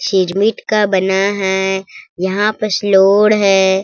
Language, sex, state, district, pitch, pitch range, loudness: Hindi, female, Chhattisgarh, Sarguja, 195 Hz, 190-210 Hz, -14 LUFS